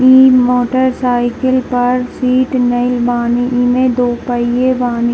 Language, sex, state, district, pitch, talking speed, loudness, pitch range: Hindi, female, Bihar, Darbhanga, 250 Hz, 130 wpm, -13 LUFS, 245-255 Hz